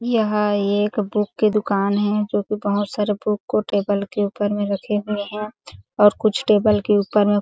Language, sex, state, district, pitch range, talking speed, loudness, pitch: Hindi, female, Chhattisgarh, Sarguja, 205-210 Hz, 200 wpm, -20 LUFS, 205 Hz